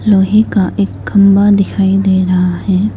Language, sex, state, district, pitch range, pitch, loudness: Hindi, female, Arunachal Pradesh, Lower Dibang Valley, 190-205 Hz, 195 Hz, -11 LUFS